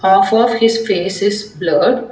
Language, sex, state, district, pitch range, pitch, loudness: English, female, Telangana, Hyderabad, 190-230 Hz, 210 Hz, -14 LUFS